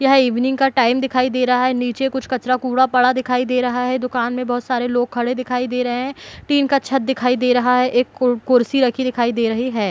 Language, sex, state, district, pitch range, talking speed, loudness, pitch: Hindi, female, Bihar, Kishanganj, 245-260 Hz, 250 wpm, -18 LUFS, 250 Hz